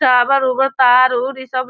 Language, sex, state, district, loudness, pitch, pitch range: Hindi, female, Bihar, Sitamarhi, -14 LUFS, 255 Hz, 250-265 Hz